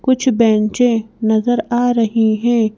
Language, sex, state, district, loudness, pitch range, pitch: Hindi, female, Madhya Pradesh, Bhopal, -15 LUFS, 220-240 Hz, 230 Hz